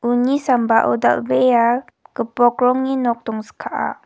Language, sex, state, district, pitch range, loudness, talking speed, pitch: Garo, female, Meghalaya, West Garo Hills, 225-250 Hz, -18 LUFS, 105 wpm, 240 Hz